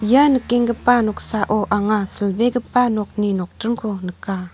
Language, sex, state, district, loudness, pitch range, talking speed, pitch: Garo, female, Meghalaya, North Garo Hills, -19 LUFS, 205-240 Hz, 105 wpm, 215 Hz